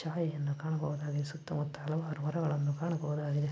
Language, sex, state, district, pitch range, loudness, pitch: Kannada, male, Karnataka, Belgaum, 145-160 Hz, -35 LUFS, 150 Hz